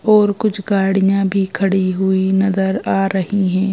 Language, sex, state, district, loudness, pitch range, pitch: Hindi, female, Madhya Pradesh, Bhopal, -16 LUFS, 190-195 Hz, 195 Hz